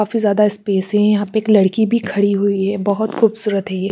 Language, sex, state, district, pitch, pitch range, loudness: Hindi, female, Haryana, Charkhi Dadri, 205 Hz, 200-215 Hz, -16 LUFS